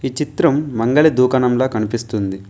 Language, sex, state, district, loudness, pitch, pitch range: Telugu, male, Telangana, Mahabubabad, -17 LUFS, 125 Hz, 115-135 Hz